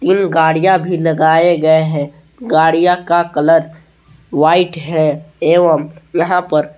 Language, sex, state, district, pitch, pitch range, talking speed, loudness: Hindi, male, Jharkhand, Palamu, 160 Hz, 155-175 Hz, 125 wpm, -13 LUFS